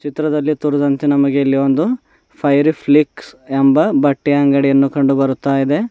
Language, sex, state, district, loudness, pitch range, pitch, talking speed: Kannada, male, Karnataka, Bidar, -15 LUFS, 140-150 Hz, 140 Hz, 120 wpm